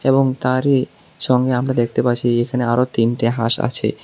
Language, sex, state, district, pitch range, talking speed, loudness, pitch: Bengali, male, Tripura, South Tripura, 120-130 Hz, 180 wpm, -18 LUFS, 125 Hz